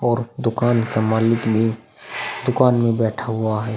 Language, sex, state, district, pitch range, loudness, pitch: Hindi, male, Uttar Pradesh, Hamirpur, 110-120 Hz, -20 LUFS, 115 Hz